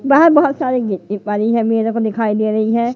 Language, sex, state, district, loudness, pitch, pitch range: Hindi, male, Madhya Pradesh, Katni, -16 LUFS, 225 Hz, 215-255 Hz